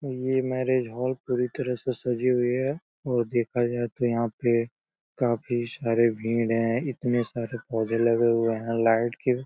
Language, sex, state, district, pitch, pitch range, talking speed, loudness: Hindi, male, Uttar Pradesh, Deoria, 120 Hz, 115-125 Hz, 170 wpm, -26 LUFS